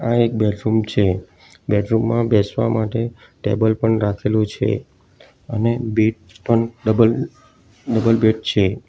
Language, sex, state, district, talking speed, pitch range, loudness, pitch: Gujarati, male, Gujarat, Valsad, 130 wpm, 105-115 Hz, -19 LUFS, 110 Hz